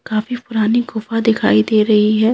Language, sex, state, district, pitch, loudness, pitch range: Hindi, female, Bihar, Saran, 220 Hz, -15 LUFS, 215-230 Hz